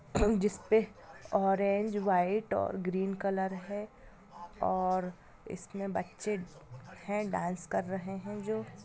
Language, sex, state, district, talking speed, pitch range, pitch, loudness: Hindi, female, Bihar, Gopalganj, 120 wpm, 185-210 Hz, 195 Hz, -33 LUFS